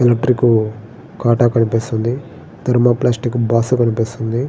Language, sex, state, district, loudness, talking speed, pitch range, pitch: Telugu, male, Andhra Pradesh, Srikakulam, -16 LUFS, 95 wpm, 115-120 Hz, 120 Hz